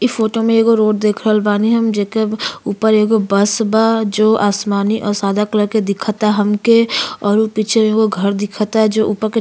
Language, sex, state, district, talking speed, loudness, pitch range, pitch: Bhojpuri, female, Uttar Pradesh, Ghazipur, 205 wpm, -15 LUFS, 205-220 Hz, 215 Hz